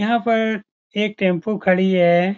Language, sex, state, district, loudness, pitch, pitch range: Hindi, male, Bihar, Saran, -19 LUFS, 205 Hz, 185-220 Hz